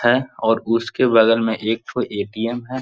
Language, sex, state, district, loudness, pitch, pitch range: Hindi, male, Bihar, Jahanabad, -19 LUFS, 115 Hz, 110-120 Hz